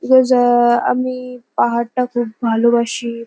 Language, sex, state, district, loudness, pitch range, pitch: Bengali, female, West Bengal, North 24 Parganas, -16 LUFS, 235-250 Hz, 240 Hz